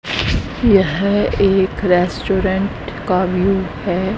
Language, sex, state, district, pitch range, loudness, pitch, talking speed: Hindi, female, Haryana, Rohtak, 185-195 Hz, -17 LUFS, 190 Hz, 85 wpm